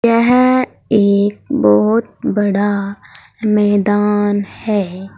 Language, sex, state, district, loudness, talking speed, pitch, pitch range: Hindi, female, Uttar Pradesh, Saharanpur, -15 LUFS, 70 wpm, 205 Hz, 200-220 Hz